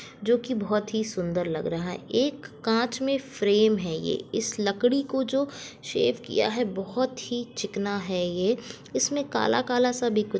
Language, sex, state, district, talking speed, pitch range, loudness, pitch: Hindi, female, Jharkhand, Jamtara, 190 wpm, 200-250 Hz, -27 LUFS, 225 Hz